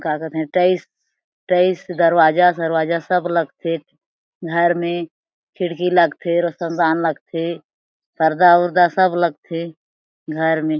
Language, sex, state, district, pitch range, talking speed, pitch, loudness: Chhattisgarhi, female, Chhattisgarh, Jashpur, 160-175 Hz, 120 wpm, 170 Hz, -18 LUFS